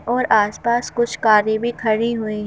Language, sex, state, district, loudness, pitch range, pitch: Hindi, female, Madhya Pradesh, Bhopal, -18 LUFS, 215-235 Hz, 225 Hz